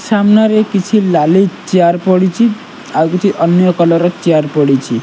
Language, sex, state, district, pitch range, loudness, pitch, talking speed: Odia, male, Odisha, Nuapada, 170-205 Hz, -11 LUFS, 180 Hz, 120 wpm